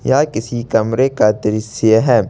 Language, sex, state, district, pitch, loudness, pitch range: Hindi, male, Jharkhand, Ranchi, 110 Hz, -15 LUFS, 110-120 Hz